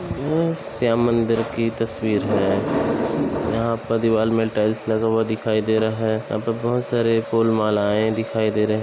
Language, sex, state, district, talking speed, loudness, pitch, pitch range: Hindi, male, Jharkhand, Sahebganj, 145 wpm, -21 LUFS, 115 Hz, 110-115 Hz